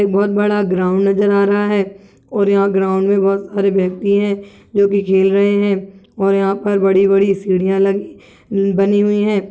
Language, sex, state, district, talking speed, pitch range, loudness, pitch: Hindi, male, Chhattisgarh, Balrampur, 185 wpm, 195-200 Hz, -15 LUFS, 195 Hz